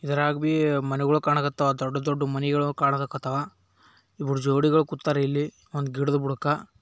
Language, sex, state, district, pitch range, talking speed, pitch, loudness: Kannada, male, Karnataka, Bijapur, 140-145 Hz, 130 wpm, 145 Hz, -25 LUFS